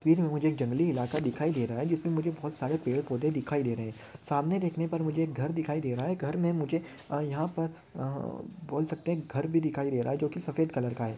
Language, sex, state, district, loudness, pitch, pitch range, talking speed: Hindi, male, Maharashtra, Solapur, -31 LUFS, 150 Hz, 135-165 Hz, 275 wpm